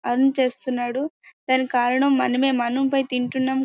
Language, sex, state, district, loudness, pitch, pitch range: Telugu, female, Karnataka, Bellary, -22 LUFS, 260 Hz, 250-270 Hz